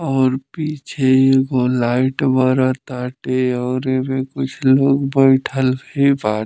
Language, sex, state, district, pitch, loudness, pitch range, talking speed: Bhojpuri, male, Bihar, Muzaffarpur, 130 Hz, -17 LUFS, 130-135 Hz, 130 wpm